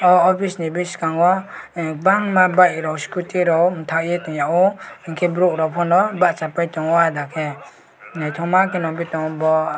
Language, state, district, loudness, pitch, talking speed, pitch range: Kokborok, Tripura, West Tripura, -18 LUFS, 170 Hz, 125 wpm, 160-180 Hz